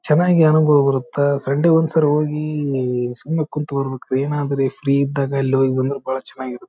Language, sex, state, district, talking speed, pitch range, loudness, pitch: Kannada, male, Karnataka, Raichur, 70 wpm, 135-150 Hz, -18 LUFS, 140 Hz